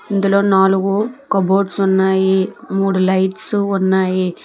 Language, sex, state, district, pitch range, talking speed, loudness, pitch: Telugu, female, Telangana, Hyderabad, 190-200 Hz, 95 wpm, -16 LUFS, 190 Hz